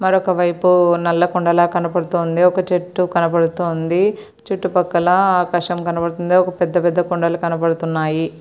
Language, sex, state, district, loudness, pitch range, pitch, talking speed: Telugu, female, Andhra Pradesh, Srikakulam, -17 LUFS, 170-180 Hz, 175 Hz, 105 wpm